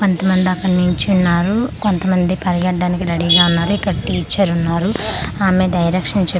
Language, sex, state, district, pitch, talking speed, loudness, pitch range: Telugu, female, Andhra Pradesh, Manyam, 185 Hz, 160 wpm, -16 LUFS, 175-195 Hz